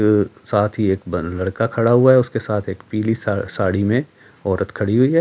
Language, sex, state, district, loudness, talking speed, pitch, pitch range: Hindi, male, Delhi, New Delhi, -19 LUFS, 195 wpm, 105 Hz, 100-115 Hz